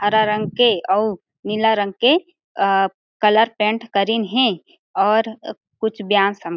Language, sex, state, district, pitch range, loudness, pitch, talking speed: Chhattisgarhi, female, Chhattisgarh, Jashpur, 200-225 Hz, -18 LUFS, 215 Hz, 155 wpm